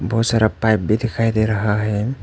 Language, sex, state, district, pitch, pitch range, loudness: Hindi, male, Arunachal Pradesh, Papum Pare, 110 Hz, 105-115 Hz, -18 LUFS